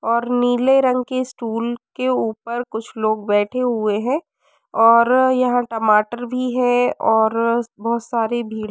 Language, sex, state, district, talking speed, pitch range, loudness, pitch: Hindi, female, Uttar Pradesh, Varanasi, 150 wpm, 225-250 Hz, -19 LUFS, 235 Hz